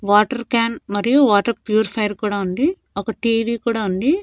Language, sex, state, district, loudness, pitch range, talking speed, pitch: Telugu, female, Andhra Pradesh, Annamaya, -19 LUFS, 205-235 Hz, 155 wpm, 225 Hz